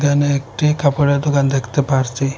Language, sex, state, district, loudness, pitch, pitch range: Bengali, male, Assam, Hailakandi, -17 LUFS, 140 Hz, 135-145 Hz